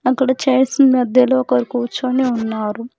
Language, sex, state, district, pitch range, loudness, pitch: Telugu, female, Telangana, Hyderabad, 240-260 Hz, -16 LUFS, 255 Hz